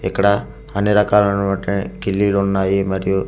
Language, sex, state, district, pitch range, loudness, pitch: Telugu, male, Andhra Pradesh, Manyam, 95-100 Hz, -18 LUFS, 100 Hz